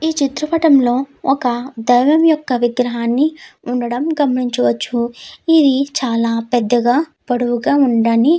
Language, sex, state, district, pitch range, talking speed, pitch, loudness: Telugu, female, Andhra Pradesh, Chittoor, 240-295 Hz, 115 wpm, 250 Hz, -16 LUFS